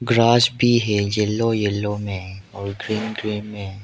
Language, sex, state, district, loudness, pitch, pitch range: Hindi, male, Arunachal Pradesh, Lower Dibang Valley, -20 LUFS, 105 Hz, 100-115 Hz